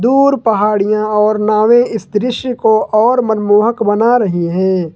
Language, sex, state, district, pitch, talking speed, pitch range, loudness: Hindi, male, Jharkhand, Ranchi, 215 Hz, 145 wpm, 210-240 Hz, -12 LUFS